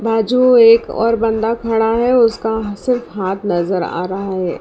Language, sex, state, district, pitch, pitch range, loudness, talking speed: Hindi, female, Karnataka, Bangalore, 225 Hz, 195-230 Hz, -15 LUFS, 170 wpm